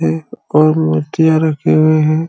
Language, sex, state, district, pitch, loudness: Hindi, male, Jharkhand, Sahebganj, 155 Hz, -13 LUFS